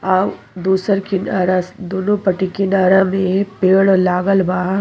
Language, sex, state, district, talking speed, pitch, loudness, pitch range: Bhojpuri, female, Uttar Pradesh, Deoria, 125 wpm, 190 Hz, -16 LUFS, 185-195 Hz